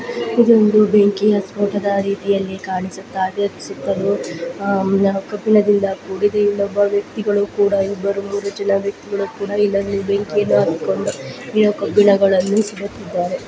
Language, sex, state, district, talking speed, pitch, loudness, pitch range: Kannada, female, Karnataka, Belgaum, 105 wpm, 200 Hz, -18 LUFS, 195-205 Hz